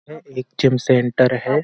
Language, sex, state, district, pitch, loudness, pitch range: Hindi, male, Uttar Pradesh, Hamirpur, 130 Hz, -17 LUFS, 125-135 Hz